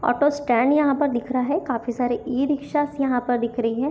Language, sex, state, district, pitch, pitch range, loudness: Hindi, female, Maharashtra, Chandrapur, 255 Hz, 240-290 Hz, -22 LUFS